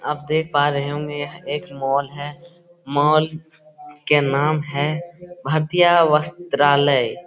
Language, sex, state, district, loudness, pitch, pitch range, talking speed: Hindi, male, Bihar, Saran, -19 LUFS, 150 Hz, 145-165 Hz, 115 wpm